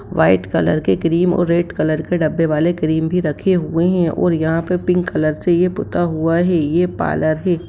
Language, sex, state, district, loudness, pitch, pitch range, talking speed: Hindi, female, Bihar, Sitamarhi, -17 LUFS, 170 Hz, 160-180 Hz, 210 wpm